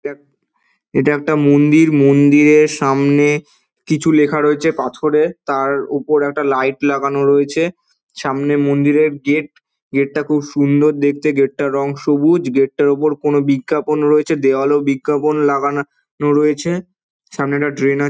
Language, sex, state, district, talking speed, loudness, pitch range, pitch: Bengali, male, West Bengal, Dakshin Dinajpur, 140 wpm, -15 LUFS, 140-150 Hz, 145 Hz